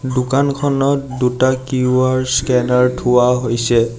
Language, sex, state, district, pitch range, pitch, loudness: Assamese, male, Assam, Sonitpur, 125-130 Hz, 130 Hz, -15 LUFS